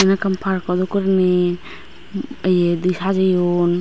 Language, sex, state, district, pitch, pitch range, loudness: Chakma, female, Tripura, West Tripura, 185 Hz, 175-190 Hz, -18 LUFS